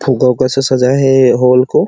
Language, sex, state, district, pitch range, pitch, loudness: Hindi, male, Chhattisgarh, Sarguja, 125-135 Hz, 130 Hz, -11 LUFS